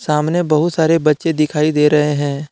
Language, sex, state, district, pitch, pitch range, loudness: Hindi, male, Jharkhand, Deoghar, 155 Hz, 150-160 Hz, -15 LUFS